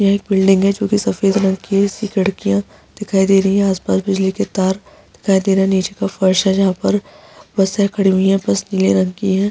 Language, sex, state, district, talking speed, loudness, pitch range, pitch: Hindi, female, Bihar, Araria, 245 wpm, -16 LUFS, 190-200 Hz, 195 Hz